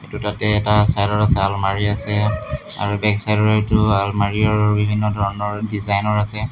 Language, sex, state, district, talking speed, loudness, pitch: Assamese, male, Assam, Hailakandi, 140 wpm, -18 LUFS, 105 Hz